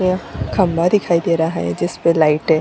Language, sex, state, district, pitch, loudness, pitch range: Hindi, female, Jharkhand, Jamtara, 165 Hz, -17 LUFS, 155-180 Hz